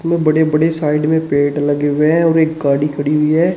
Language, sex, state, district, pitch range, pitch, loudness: Hindi, male, Uttar Pradesh, Shamli, 145-160 Hz, 155 Hz, -14 LUFS